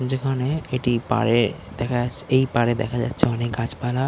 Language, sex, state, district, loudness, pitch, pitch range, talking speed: Bengali, male, West Bengal, Dakshin Dinajpur, -23 LUFS, 120 Hz, 120-130 Hz, 160 wpm